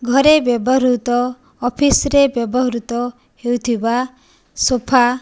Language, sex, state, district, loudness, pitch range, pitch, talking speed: Odia, female, Odisha, Nuapada, -16 LUFS, 240-260 Hz, 250 Hz, 90 wpm